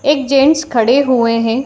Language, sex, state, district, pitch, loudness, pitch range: Hindi, female, Uttar Pradesh, Muzaffarnagar, 270 Hz, -12 LUFS, 230-280 Hz